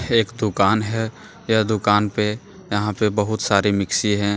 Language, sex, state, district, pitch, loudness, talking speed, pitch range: Hindi, male, Jharkhand, Deoghar, 105 Hz, -20 LUFS, 165 wpm, 105-110 Hz